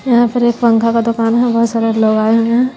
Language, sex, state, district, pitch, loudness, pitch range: Hindi, female, Bihar, West Champaran, 230 Hz, -13 LUFS, 225-240 Hz